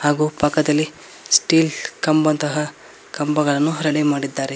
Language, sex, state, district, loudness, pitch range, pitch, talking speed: Kannada, male, Karnataka, Koppal, -19 LUFS, 145-155 Hz, 150 Hz, 90 wpm